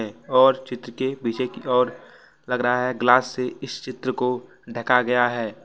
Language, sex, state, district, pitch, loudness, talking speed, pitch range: Hindi, male, Jharkhand, Ranchi, 125 Hz, -22 LUFS, 180 wpm, 120-130 Hz